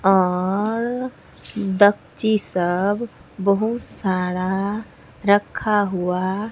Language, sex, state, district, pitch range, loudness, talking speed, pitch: Hindi, female, Bihar, Katihar, 185-215 Hz, -21 LUFS, 55 wpm, 200 Hz